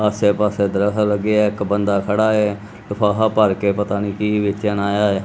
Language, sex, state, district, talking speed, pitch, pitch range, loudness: Punjabi, male, Punjab, Kapurthala, 195 wpm, 105 Hz, 100-105 Hz, -18 LUFS